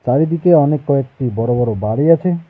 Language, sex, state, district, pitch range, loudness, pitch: Bengali, male, West Bengal, Alipurduar, 120-165 Hz, -15 LUFS, 145 Hz